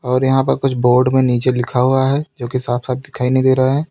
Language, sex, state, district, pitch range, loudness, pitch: Hindi, male, Uttar Pradesh, Lalitpur, 125-135 Hz, -16 LUFS, 130 Hz